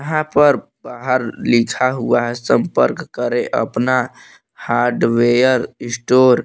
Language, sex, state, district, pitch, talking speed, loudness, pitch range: Hindi, male, Jharkhand, Palamu, 125 Hz, 110 wpm, -17 LUFS, 120-130 Hz